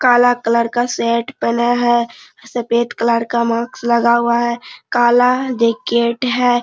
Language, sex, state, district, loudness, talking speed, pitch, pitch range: Hindi, female, Jharkhand, Sahebganj, -16 LUFS, 135 wpm, 235 Hz, 235-245 Hz